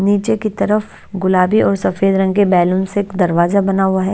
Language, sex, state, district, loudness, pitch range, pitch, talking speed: Hindi, female, Odisha, Nuapada, -15 LUFS, 185-205 Hz, 195 Hz, 215 wpm